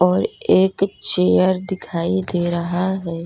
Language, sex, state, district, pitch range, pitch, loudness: Hindi, female, Bihar, Vaishali, 170-190 Hz, 180 Hz, -19 LUFS